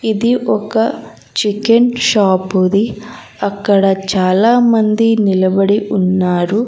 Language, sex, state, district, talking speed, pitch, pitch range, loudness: Telugu, female, Andhra Pradesh, Sri Satya Sai, 90 wpm, 205 Hz, 190-225 Hz, -13 LUFS